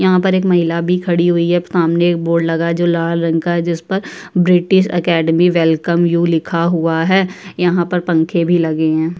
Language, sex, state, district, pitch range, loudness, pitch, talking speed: Hindi, female, Uttar Pradesh, Budaun, 165-180 Hz, -15 LUFS, 170 Hz, 210 wpm